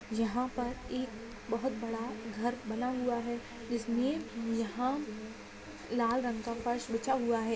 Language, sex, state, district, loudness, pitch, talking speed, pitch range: Hindi, female, Bihar, Kishanganj, -35 LUFS, 235 Hz, 145 wpm, 230-250 Hz